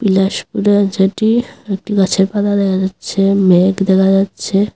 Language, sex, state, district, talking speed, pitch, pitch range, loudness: Bengali, female, Tripura, Unakoti, 115 wpm, 195 Hz, 190-205 Hz, -14 LUFS